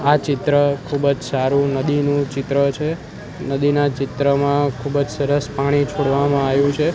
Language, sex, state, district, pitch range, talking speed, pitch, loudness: Gujarati, male, Gujarat, Gandhinagar, 140-145 Hz, 130 wpm, 140 Hz, -19 LUFS